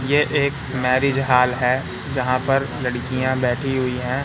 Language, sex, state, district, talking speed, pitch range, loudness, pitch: Hindi, male, Madhya Pradesh, Katni, 155 wpm, 125-135 Hz, -20 LUFS, 130 Hz